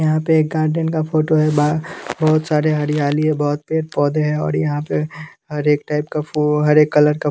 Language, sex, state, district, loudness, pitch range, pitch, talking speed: Hindi, male, Bihar, West Champaran, -17 LUFS, 150-155 Hz, 150 Hz, 230 wpm